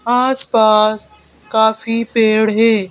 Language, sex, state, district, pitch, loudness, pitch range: Hindi, female, Madhya Pradesh, Bhopal, 220 Hz, -14 LUFS, 215-230 Hz